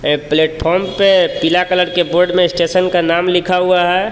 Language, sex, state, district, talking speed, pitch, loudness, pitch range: Hindi, male, Jharkhand, Palamu, 205 wpm, 180 Hz, -13 LUFS, 170-180 Hz